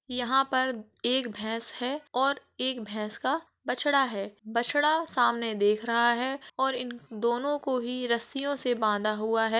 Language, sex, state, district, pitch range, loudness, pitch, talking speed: Hindi, female, Uttar Pradesh, Jalaun, 225-265 Hz, -28 LUFS, 245 Hz, 165 wpm